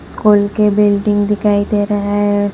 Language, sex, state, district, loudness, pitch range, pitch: Hindi, female, Assam, Hailakandi, -14 LUFS, 205-210 Hz, 205 Hz